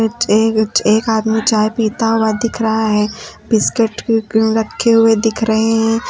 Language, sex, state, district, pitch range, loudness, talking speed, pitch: Hindi, female, Uttar Pradesh, Lucknow, 220-225 Hz, -14 LUFS, 150 wpm, 220 Hz